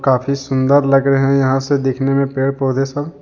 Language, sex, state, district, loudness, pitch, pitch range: Hindi, male, Jharkhand, Deoghar, -15 LUFS, 135 Hz, 135-140 Hz